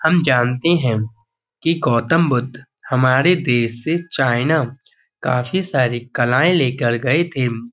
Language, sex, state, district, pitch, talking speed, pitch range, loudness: Hindi, male, Uttar Pradesh, Budaun, 130 Hz, 125 wpm, 120-160 Hz, -18 LUFS